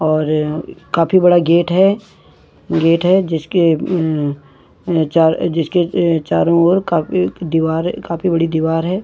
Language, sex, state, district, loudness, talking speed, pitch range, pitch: Hindi, female, Uttarakhand, Tehri Garhwal, -15 LUFS, 135 wpm, 160-175 Hz, 165 Hz